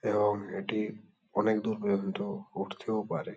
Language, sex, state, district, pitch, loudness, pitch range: Bengali, male, West Bengal, Kolkata, 105 Hz, -32 LUFS, 100-110 Hz